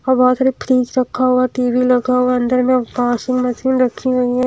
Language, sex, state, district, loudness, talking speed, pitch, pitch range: Hindi, female, Himachal Pradesh, Shimla, -16 LUFS, 230 wpm, 255 Hz, 250-255 Hz